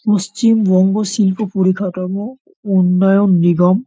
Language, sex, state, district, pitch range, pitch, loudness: Bengali, male, West Bengal, North 24 Parganas, 185-210 Hz, 195 Hz, -14 LUFS